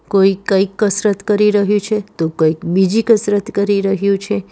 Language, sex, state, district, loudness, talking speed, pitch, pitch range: Gujarati, female, Gujarat, Valsad, -15 LUFS, 175 wpm, 200 Hz, 195-210 Hz